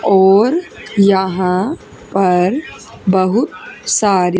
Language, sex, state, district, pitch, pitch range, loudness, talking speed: Hindi, female, Haryana, Jhajjar, 195 Hz, 185-225 Hz, -14 LUFS, 70 wpm